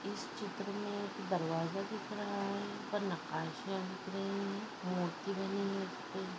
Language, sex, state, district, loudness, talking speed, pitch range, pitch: Hindi, female, Maharashtra, Chandrapur, -39 LUFS, 150 wpm, 195-205 Hz, 200 Hz